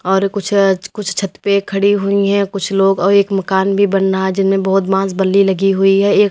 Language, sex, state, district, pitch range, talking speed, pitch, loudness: Hindi, female, Uttar Pradesh, Lalitpur, 195-200 Hz, 245 wpm, 195 Hz, -14 LUFS